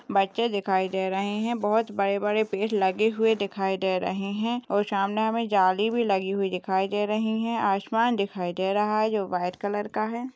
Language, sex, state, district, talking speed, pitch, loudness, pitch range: Hindi, female, Bihar, Purnia, 205 wpm, 205 Hz, -26 LUFS, 195-220 Hz